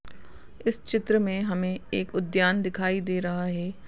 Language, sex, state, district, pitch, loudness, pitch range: Hindi, female, Uttar Pradesh, Ghazipur, 185 Hz, -27 LUFS, 180-195 Hz